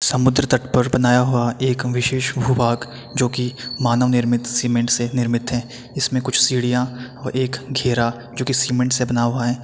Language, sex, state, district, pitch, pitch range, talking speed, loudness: Hindi, male, Uttar Pradesh, Etah, 125 Hz, 120-130 Hz, 185 wpm, -19 LUFS